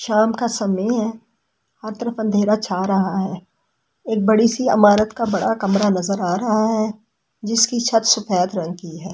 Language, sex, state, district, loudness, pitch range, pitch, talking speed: Hindi, female, Delhi, New Delhi, -19 LUFS, 195-225 Hz, 215 Hz, 165 wpm